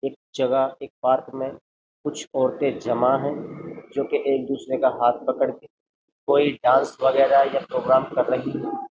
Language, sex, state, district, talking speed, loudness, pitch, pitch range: Hindi, male, Uttar Pradesh, Jyotiba Phule Nagar, 170 wpm, -22 LUFS, 135 Hz, 130-140 Hz